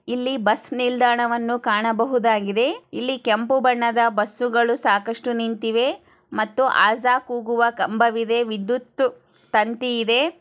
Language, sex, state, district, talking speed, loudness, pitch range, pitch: Kannada, female, Karnataka, Chamarajanagar, 110 wpm, -21 LUFS, 225-245 Hz, 235 Hz